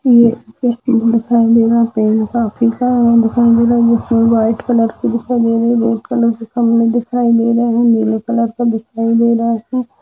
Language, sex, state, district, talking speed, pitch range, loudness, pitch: Hindi, female, Uttar Pradesh, Budaun, 85 wpm, 230-235 Hz, -13 LUFS, 230 Hz